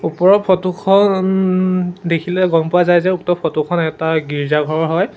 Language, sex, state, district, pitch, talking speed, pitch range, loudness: Assamese, male, Assam, Sonitpur, 175 Hz, 160 wpm, 160-185 Hz, -15 LUFS